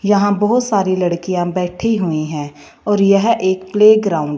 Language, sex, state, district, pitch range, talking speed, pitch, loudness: Hindi, female, Punjab, Fazilka, 175-210 Hz, 180 wpm, 195 Hz, -15 LUFS